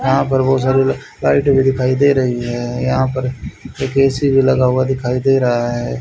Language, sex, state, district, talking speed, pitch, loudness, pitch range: Hindi, male, Haryana, Charkhi Dadri, 220 wpm, 130 Hz, -15 LUFS, 125-135 Hz